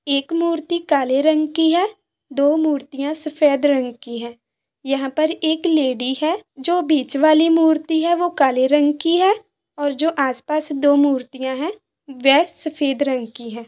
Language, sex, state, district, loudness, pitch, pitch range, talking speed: Hindi, female, Jharkhand, Jamtara, -18 LUFS, 300 Hz, 275-325 Hz, 165 wpm